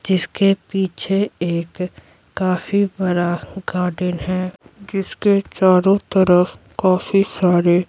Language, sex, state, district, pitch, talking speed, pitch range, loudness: Hindi, female, Bihar, Patna, 185 Hz, 100 wpm, 180-195 Hz, -18 LUFS